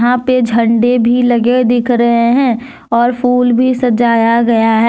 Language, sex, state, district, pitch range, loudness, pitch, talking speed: Hindi, female, Jharkhand, Deoghar, 235-250 Hz, -11 LUFS, 240 Hz, 170 wpm